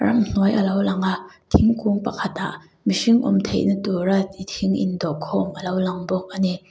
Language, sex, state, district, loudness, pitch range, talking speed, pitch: Mizo, female, Mizoram, Aizawl, -21 LUFS, 185-200 Hz, 170 wpm, 195 Hz